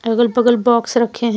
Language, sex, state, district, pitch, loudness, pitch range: Hindi, female, Jharkhand, Deoghar, 235 Hz, -15 LUFS, 230-240 Hz